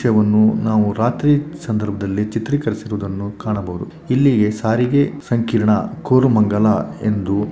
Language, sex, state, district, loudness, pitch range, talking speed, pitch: Kannada, male, Karnataka, Shimoga, -18 LUFS, 105-125 Hz, 105 wpm, 110 Hz